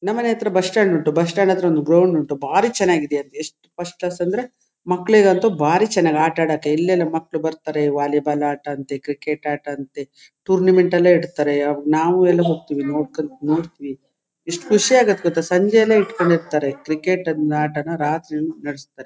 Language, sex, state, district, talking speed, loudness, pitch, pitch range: Kannada, female, Karnataka, Shimoga, 155 wpm, -18 LUFS, 160 Hz, 150-180 Hz